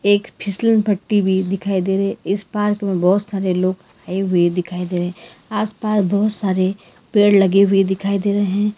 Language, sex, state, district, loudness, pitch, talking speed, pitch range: Hindi, female, Karnataka, Bangalore, -18 LUFS, 195 Hz, 190 wpm, 190-205 Hz